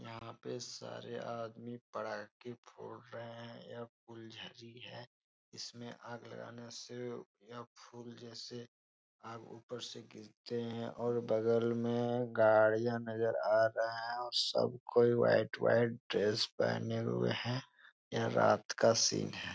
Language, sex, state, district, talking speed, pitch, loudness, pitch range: Hindi, male, Bihar, Jahanabad, 140 wpm, 115 Hz, -34 LUFS, 110-120 Hz